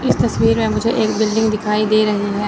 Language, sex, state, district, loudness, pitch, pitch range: Hindi, female, Chandigarh, Chandigarh, -16 LUFS, 215 Hz, 210-220 Hz